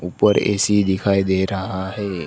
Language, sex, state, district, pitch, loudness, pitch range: Hindi, male, Gujarat, Gandhinagar, 95 Hz, -19 LUFS, 95-100 Hz